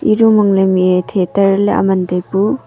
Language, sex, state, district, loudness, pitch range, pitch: Wancho, female, Arunachal Pradesh, Longding, -13 LUFS, 185-205 Hz, 195 Hz